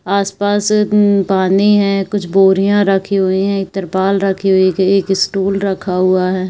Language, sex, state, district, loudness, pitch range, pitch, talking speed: Hindi, female, Uttar Pradesh, Varanasi, -14 LUFS, 190-200 Hz, 195 Hz, 185 wpm